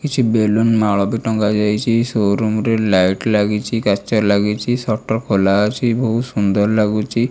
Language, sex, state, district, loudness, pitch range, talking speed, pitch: Odia, male, Odisha, Malkangiri, -16 LUFS, 105-115 Hz, 155 wpm, 110 Hz